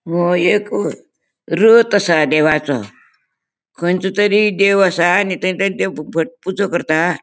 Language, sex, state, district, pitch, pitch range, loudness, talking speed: Konkani, female, Goa, North and South Goa, 180 Hz, 165-200 Hz, -15 LUFS, 115 wpm